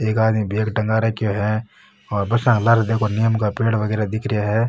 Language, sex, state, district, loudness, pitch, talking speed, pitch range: Marwari, male, Rajasthan, Nagaur, -20 LUFS, 110 Hz, 230 wpm, 105-115 Hz